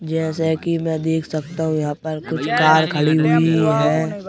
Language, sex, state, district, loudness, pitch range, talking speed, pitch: Hindi, male, Madhya Pradesh, Bhopal, -18 LUFS, 155-160 Hz, 180 wpm, 160 Hz